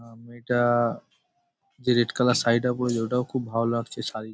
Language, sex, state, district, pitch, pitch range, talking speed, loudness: Bengali, male, West Bengal, Paschim Medinipur, 120 Hz, 115-125 Hz, 195 wpm, -25 LUFS